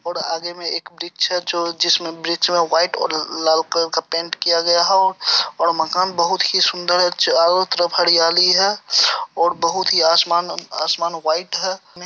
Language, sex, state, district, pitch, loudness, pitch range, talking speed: Hindi, male, Bihar, Supaul, 170 Hz, -17 LUFS, 165-180 Hz, 175 wpm